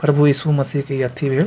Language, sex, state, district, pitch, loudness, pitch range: Maithili, male, Bihar, Supaul, 140 Hz, -18 LUFS, 135-150 Hz